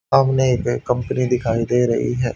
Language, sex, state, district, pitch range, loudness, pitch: Hindi, male, Haryana, Rohtak, 120-125 Hz, -19 LUFS, 125 Hz